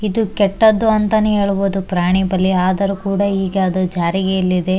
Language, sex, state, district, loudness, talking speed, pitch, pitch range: Kannada, male, Karnataka, Bellary, -16 LUFS, 125 wpm, 195 Hz, 185-205 Hz